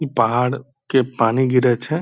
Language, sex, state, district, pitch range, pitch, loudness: Hindi, male, Bihar, Purnia, 120-140 Hz, 130 Hz, -18 LUFS